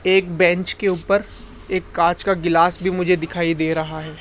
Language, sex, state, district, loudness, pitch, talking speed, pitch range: Hindi, male, Rajasthan, Jaipur, -19 LUFS, 175 Hz, 200 wpm, 165-185 Hz